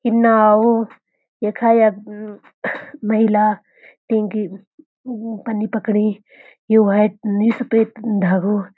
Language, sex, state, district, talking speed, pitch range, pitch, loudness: Garhwali, female, Uttarakhand, Uttarkashi, 90 wpm, 210-225 Hz, 215 Hz, -17 LUFS